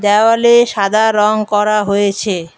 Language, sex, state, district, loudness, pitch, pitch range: Bengali, female, West Bengal, Alipurduar, -12 LUFS, 210 Hz, 200-220 Hz